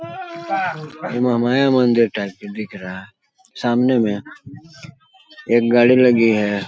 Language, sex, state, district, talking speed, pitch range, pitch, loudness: Hindi, male, Chhattisgarh, Balrampur, 125 wpm, 115-160 Hz, 125 Hz, -17 LUFS